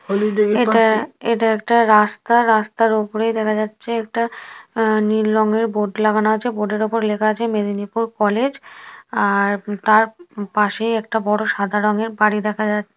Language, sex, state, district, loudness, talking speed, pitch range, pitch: Bengali, female, West Bengal, Paschim Medinipur, -18 LUFS, 150 wpm, 210-225 Hz, 215 Hz